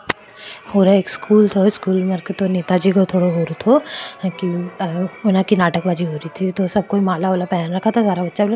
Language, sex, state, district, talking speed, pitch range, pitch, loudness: Marwari, female, Rajasthan, Churu, 135 wpm, 180-205 Hz, 190 Hz, -18 LUFS